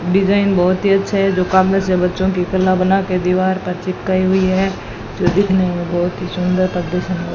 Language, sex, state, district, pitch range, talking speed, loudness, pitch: Hindi, female, Rajasthan, Bikaner, 180-190 Hz, 195 wpm, -16 LUFS, 185 Hz